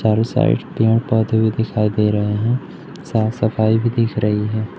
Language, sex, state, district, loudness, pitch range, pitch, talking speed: Hindi, male, Madhya Pradesh, Umaria, -18 LUFS, 110-115 Hz, 110 Hz, 190 wpm